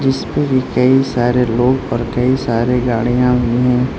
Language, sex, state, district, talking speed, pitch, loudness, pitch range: Hindi, male, Arunachal Pradesh, Lower Dibang Valley, 165 wpm, 125 Hz, -15 LUFS, 120-130 Hz